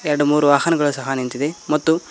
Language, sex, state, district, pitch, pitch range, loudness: Kannada, male, Karnataka, Koppal, 145 Hz, 140-160 Hz, -18 LUFS